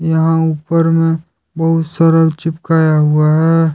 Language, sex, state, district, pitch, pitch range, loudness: Hindi, male, Jharkhand, Deoghar, 165 Hz, 160-165 Hz, -13 LUFS